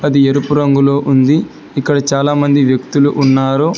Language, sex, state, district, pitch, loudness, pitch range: Telugu, male, Telangana, Hyderabad, 140 Hz, -12 LUFS, 135-145 Hz